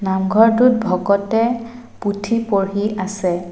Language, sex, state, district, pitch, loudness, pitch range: Assamese, female, Assam, Sonitpur, 205 Hz, -18 LUFS, 190-230 Hz